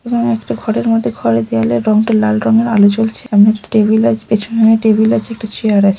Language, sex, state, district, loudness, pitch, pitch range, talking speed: Bengali, female, West Bengal, Malda, -13 LUFS, 215 Hz, 205-225 Hz, 190 wpm